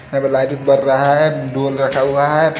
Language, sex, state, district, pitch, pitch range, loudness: Hindi, male, Haryana, Rohtak, 140 Hz, 135-145 Hz, -15 LUFS